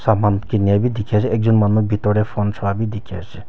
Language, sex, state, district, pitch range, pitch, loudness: Nagamese, male, Nagaland, Kohima, 100-110 Hz, 105 Hz, -18 LUFS